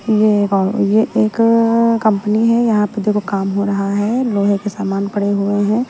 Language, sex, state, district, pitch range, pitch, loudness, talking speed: Hindi, female, Haryana, Jhajjar, 200-225 Hz, 210 Hz, -15 LUFS, 185 wpm